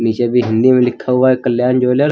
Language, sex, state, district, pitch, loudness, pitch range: Hindi, male, Uttar Pradesh, Lucknow, 125 Hz, -13 LUFS, 120-130 Hz